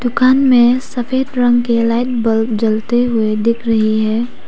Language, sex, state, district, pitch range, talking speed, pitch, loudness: Hindi, female, Arunachal Pradesh, Papum Pare, 225-245 Hz, 160 wpm, 240 Hz, -14 LUFS